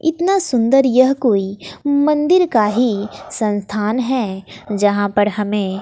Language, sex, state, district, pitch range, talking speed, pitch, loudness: Hindi, female, Bihar, West Champaran, 205-270 Hz, 125 wpm, 220 Hz, -16 LUFS